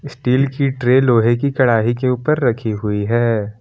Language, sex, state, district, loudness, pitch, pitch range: Hindi, male, Jharkhand, Palamu, -16 LUFS, 125 Hz, 115-130 Hz